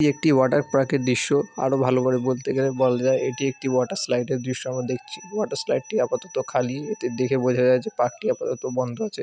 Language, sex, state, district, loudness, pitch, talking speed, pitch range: Bengali, male, West Bengal, Dakshin Dinajpur, -23 LUFS, 130 Hz, 245 wpm, 125-145 Hz